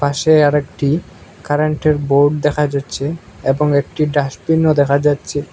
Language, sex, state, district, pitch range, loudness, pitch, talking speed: Bengali, male, Assam, Hailakandi, 140-150 Hz, -16 LUFS, 145 Hz, 120 wpm